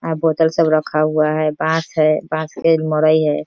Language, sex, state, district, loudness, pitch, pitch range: Hindi, female, Bihar, East Champaran, -17 LUFS, 155 Hz, 155-160 Hz